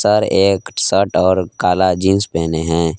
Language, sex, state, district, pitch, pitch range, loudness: Hindi, male, Jharkhand, Palamu, 95 Hz, 85-100 Hz, -15 LUFS